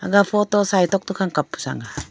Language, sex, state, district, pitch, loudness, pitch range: Wancho, female, Arunachal Pradesh, Longding, 195 Hz, -20 LUFS, 190-205 Hz